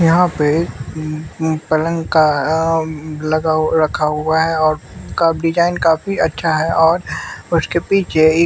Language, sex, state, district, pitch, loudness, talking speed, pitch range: Hindi, male, Bihar, West Champaran, 160 Hz, -16 LUFS, 150 wpm, 155-165 Hz